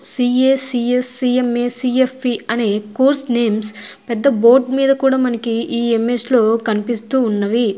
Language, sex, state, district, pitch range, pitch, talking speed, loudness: Telugu, female, Andhra Pradesh, Guntur, 230-260 Hz, 240 Hz, 185 wpm, -16 LUFS